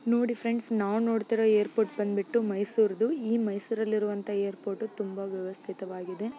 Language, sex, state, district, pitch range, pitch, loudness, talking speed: Kannada, female, Karnataka, Mysore, 200-225 Hz, 210 Hz, -29 LUFS, 130 wpm